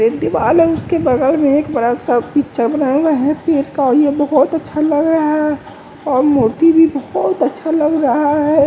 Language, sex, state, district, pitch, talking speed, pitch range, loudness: Hindi, male, Bihar, West Champaran, 295 Hz, 205 wpm, 275-310 Hz, -14 LUFS